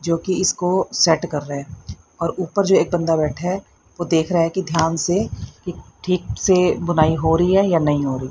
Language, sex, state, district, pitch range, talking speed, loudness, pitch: Hindi, female, Haryana, Rohtak, 155-180 Hz, 230 wpm, -19 LUFS, 170 Hz